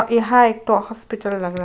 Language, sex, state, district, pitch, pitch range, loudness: Hindi, female, Maharashtra, Chandrapur, 225 Hz, 200-230 Hz, -18 LUFS